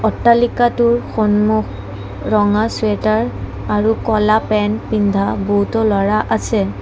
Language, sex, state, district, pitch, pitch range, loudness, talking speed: Assamese, female, Assam, Kamrup Metropolitan, 210 Hz, 180-220 Hz, -16 LUFS, 95 wpm